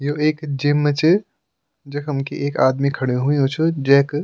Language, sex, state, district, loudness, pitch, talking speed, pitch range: Garhwali, male, Uttarakhand, Tehri Garhwal, -19 LUFS, 145 Hz, 185 wpm, 140-150 Hz